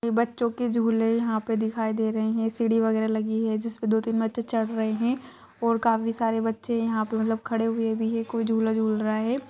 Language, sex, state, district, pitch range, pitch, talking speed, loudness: Hindi, female, Maharashtra, Solapur, 220-230 Hz, 225 Hz, 225 wpm, -26 LUFS